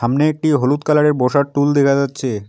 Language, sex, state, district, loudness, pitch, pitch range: Bengali, male, West Bengal, Alipurduar, -16 LUFS, 140 Hz, 130-150 Hz